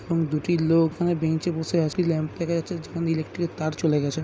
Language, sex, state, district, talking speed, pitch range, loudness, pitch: Bengali, male, West Bengal, Jhargram, 185 wpm, 155-170 Hz, -25 LUFS, 165 Hz